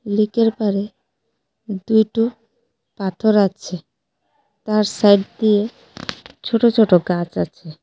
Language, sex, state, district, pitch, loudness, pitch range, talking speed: Bengali, female, Tripura, West Tripura, 215 Hz, -18 LUFS, 195-225 Hz, 90 wpm